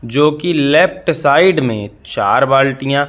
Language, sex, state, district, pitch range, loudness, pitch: Hindi, male, Madhya Pradesh, Katni, 120-145 Hz, -13 LUFS, 135 Hz